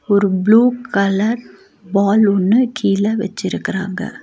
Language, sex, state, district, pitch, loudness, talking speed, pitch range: Tamil, female, Tamil Nadu, Nilgiris, 205 Hz, -16 LUFS, 100 wpm, 200-225 Hz